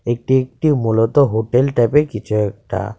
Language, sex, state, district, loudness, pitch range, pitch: Bengali, male, Tripura, West Tripura, -17 LUFS, 110-130 Hz, 120 Hz